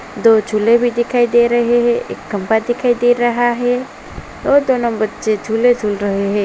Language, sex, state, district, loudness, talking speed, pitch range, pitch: Hindi, female, Uttar Pradesh, Jalaun, -15 LUFS, 185 wpm, 215-240 Hz, 240 Hz